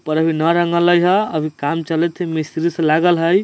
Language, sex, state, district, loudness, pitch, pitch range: Bajjika, male, Bihar, Vaishali, -17 LUFS, 165 Hz, 155-175 Hz